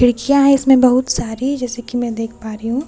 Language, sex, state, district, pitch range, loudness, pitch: Hindi, female, Bihar, Katihar, 235-265 Hz, -16 LUFS, 245 Hz